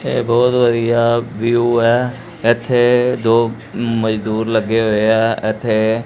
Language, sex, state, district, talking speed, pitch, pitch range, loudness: Punjabi, male, Punjab, Kapurthala, 120 wpm, 115 Hz, 110-120 Hz, -15 LUFS